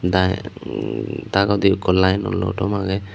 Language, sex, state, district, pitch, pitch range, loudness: Chakma, male, Tripura, Unakoti, 95 Hz, 95-100 Hz, -20 LUFS